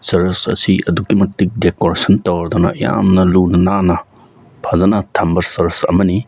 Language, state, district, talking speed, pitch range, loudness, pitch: Manipuri, Manipur, Imphal West, 125 wpm, 90-100 Hz, -14 LUFS, 95 Hz